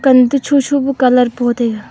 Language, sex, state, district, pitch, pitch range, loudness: Wancho, female, Arunachal Pradesh, Longding, 255 Hz, 240-275 Hz, -13 LUFS